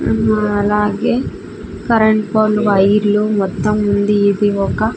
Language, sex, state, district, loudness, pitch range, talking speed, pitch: Telugu, female, Andhra Pradesh, Sri Satya Sai, -14 LUFS, 205-215 Hz, 110 wpm, 210 Hz